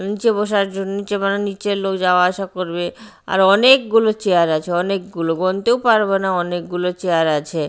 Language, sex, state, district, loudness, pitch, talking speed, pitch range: Bengali, female, Odisha, Nuapada, -18 LUFS, 190 Hz, 170 wpm, 175-205 Hz